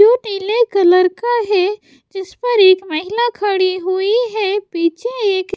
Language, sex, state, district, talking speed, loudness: Hindi, female, Bihar, West Champaran, 160 wpm, -15 LUFS